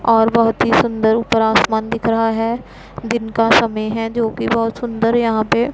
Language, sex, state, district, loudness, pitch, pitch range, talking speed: Hindi, female, Punjab, Pathankot, -16 LUFS, 225 Hz, 225-230 Hz, 210 wpm